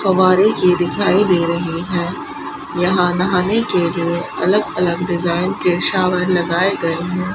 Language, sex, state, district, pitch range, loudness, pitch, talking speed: Hindi, female, Rajasthan, Bikaner, 175-185 Hz, -16 LUFS, 180 Hz, 145 wpm